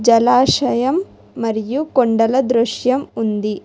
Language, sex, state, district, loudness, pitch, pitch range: Telugu, female, Telangana, Hyderabad, -17 LUFS, 245 Hz, 225-260 Hz